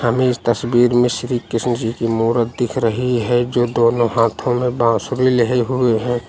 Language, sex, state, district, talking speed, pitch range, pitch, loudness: Hindi, male, Uttar Pradesh, Lucknow, 190 wpm, 115-125 Hz, 120 Hz, -17 LUFS